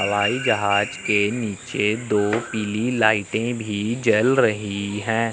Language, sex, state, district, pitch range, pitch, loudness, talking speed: Hindi, male, Chandigarh, Chandigarh, 105-115 Hz, 110 Hz, -21 LUFS, 110 wpm